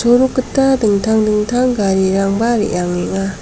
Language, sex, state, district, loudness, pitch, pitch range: Garo, female, Meghalaya, South Garo Hills, -15 LUFS, 215 Hz, 195-240 Hz